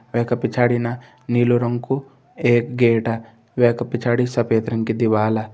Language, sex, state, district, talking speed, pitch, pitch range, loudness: Hindi, male, Uttarakhand, Tehri Garhwal, 175 wpm, 120 Hz, 115-120 Hz, -20 LUFS